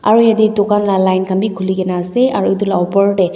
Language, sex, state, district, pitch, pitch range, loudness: Nagamese, female, Nagaland, Dimapur, 195 Hz, 185-210 Hz, -14 LUFS